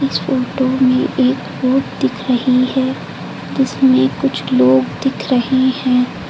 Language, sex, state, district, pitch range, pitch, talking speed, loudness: Hindi, female, Uttar Pradesh, Lucknow, 250-260 Hz, 255 Hz, 135 wpm, -15 LUFS